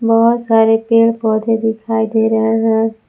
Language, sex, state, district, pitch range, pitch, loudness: Hindi, female, Jharkhand, Palamu, 220-230 Hz, 225 Hz, -14 LUFS